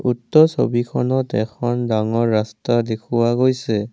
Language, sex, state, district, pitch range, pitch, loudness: Assamese, male, Assam, Kamrup Metropolitan, 110-125 Hz, 120 Hz, -19 LUFS